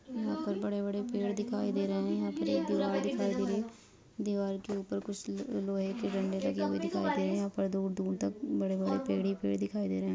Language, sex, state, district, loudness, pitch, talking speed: Hindi, female, Bihar, Saharsa, -34 LUFS, 195 Hz, 220 wpm